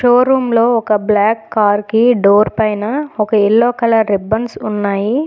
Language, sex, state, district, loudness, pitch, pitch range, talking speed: Telugu, female, Telangana, Hyderabad, -13 LUFS, 220 Hz, 210-240 Hz, 160 wpm